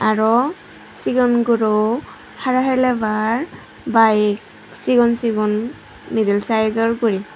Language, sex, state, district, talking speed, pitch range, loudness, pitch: Chakma, female, Tripura, Dhalai, 90 wpm, 215-245 Hz, -18 LUFS, 225 Hz